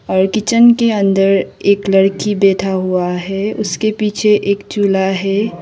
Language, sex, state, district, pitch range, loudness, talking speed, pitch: Hindi, female, Sikkim, Gangtok, 195-210 Hz, -14 LUFS, 150 wpm, 200 Hz